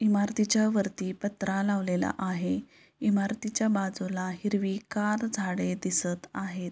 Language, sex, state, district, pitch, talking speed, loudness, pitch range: Marathi, female, Maharashtra, Pune, 195 Hz, 90 wpm, -29 LUFS, 185-210 Hz